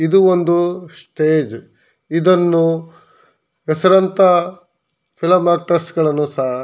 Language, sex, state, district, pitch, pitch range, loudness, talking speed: Kannada, male, Karnataka, Shimoga, 170 Hz, 160-180 Hz, -15 LUFS, 70 wpm